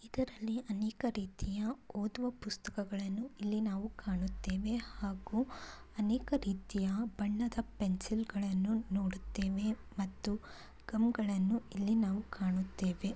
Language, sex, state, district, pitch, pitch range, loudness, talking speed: Kannada, female, Karnataka, Bellary, 210 Hz, 195-225 Hz, -37 LUFS, 80 wpm